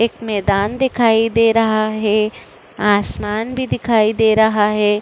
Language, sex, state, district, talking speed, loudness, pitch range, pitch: Hindi, female, Uttar Pradesh, Budaun, 145 wpm, -16 LUFS, 210-230 Hz, 220 Hz